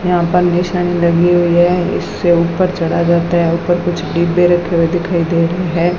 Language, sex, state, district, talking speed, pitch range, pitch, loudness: Hindi, female, Rajasthan, Bikaner, 190 wpm, 170-175 Hz, 175 Hz, -14 LUFS